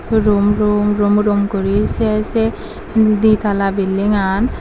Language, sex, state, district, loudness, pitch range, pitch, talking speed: Chakma, female, Tripura, Dhalai, -15 LUFS, 200-215 Hz, 210 Hz, 130 wpm